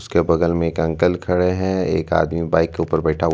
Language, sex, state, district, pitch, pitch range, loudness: Hindi, male, Chhattisgarh, Bastar, 85 Hz, 80-90 Hz, -19 LUFS